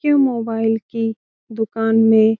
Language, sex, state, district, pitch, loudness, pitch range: Hindi, female, Bihar, Jamui, 225 Hz, -18 LUFS, 225-230 Hz